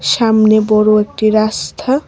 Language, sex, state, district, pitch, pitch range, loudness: Bengali, female, Tripura, West Tripura, 215 Hz, 215-225 Hz, -12 LUFS